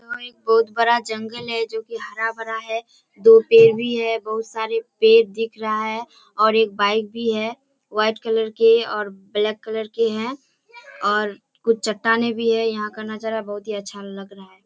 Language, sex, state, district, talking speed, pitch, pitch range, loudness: Hindi, female, Bihar, Kishanganj, 190 wpm, 225 Hz, 215-230 Hz, -20 LUFS